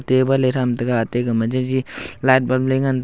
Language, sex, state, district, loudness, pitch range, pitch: Wancho, male, Arunachal Pradesh, Longding, -19 LUFS, 120-130 Hz, 130 Hz